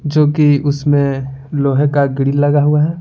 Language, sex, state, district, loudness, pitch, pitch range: Hindi, male, Bihar, Patna, -14 LUFS, 145 Hz, 140-150 Hz